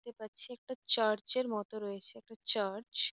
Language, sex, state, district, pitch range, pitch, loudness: Bengali, female, West Bengal, North 24 Parganas, 210-240 Hz, 215 Hz, -35 LUFS